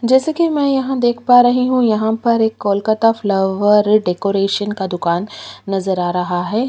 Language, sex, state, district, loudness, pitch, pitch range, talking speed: Hindi, female, Chhattisgarh, Kabirdham, -16 LUFS, 215 Hz, 195-245 Hz, 180 wpm